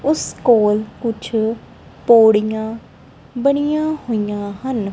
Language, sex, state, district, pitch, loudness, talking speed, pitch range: Punjabi, female, Punjab, Kapurthala, 225 Hz, -17 LUFS, 85 wpm, 215-260 Hz